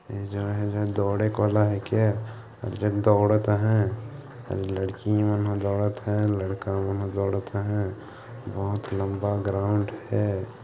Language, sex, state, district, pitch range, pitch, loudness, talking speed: Hindi, male, Chhattisgarh, Jashpur, 100-105 Hz, 105 Hz, -26 LUFS, 135 wpm